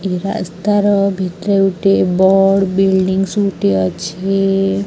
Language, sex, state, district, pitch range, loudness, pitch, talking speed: Odia, male, Odisha, Sambalpur, 185-195 Hz, -15 LUFS, 195 Hz, 100 wpm